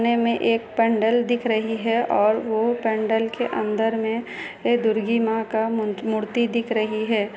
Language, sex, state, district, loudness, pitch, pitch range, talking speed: Hindi, female, Bihar, Kishanganj, -22 LUFS, 225 Hz, 220-230 Hz, 155 wpm